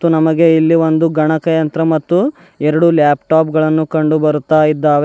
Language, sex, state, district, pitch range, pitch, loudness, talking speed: Kannada, male, Karnataka, Bidar, 155-160 Hz, 160 Hz, -13 LUFS, 130 wpm